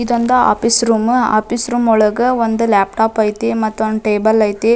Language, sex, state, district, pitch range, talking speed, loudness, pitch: Kannada, female, Karnataka, Dharwad, 215-235 Hz, 150 wpm, -14 LUFS, 225 Hz